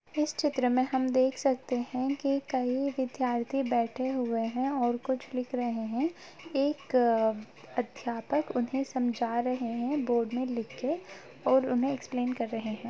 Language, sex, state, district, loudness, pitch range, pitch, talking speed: Hindi, female, Bihar, Gaya, -30 LUFS, 240-270 Hz, 255 Hz, 160 wpm